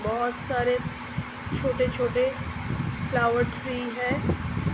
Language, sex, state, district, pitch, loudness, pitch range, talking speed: Hindi, female, Uttar Pradesh, Hamirpur, 245 Hz, -27 LUFS, 240-255 Hz, 75 wpm